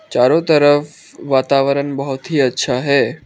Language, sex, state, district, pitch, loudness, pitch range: Hindi, male, Arunachal Pradesh, Lower Dibang Valley, 140 Hz, -15 LUFS, 135-150 Hz